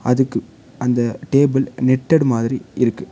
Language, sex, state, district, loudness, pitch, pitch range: Tamil, male, Tamil Nadu, Nilgiris, -18 LUFS, 130 Hz, 120-135 Hz